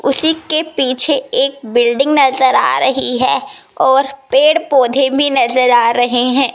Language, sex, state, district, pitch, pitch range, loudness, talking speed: Hindi, female, Rajasthan, Jaipur, 270 Hz, 255-290 Hz, -12 LUFS, 155 wpm